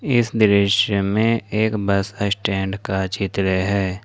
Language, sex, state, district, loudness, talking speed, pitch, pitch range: Hindi, male, Jharkhand, Ranchi, -19 LUFS, 135 wpm, 100 Hz, 95-110 Hz